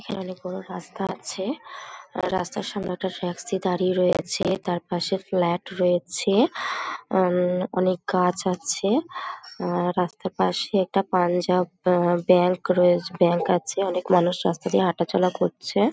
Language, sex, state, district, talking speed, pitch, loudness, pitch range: Bengali, female, West Bengal, North 24 Parganas, 140 wpm, 185 Hz, -24 LUFS, 180-195 Hz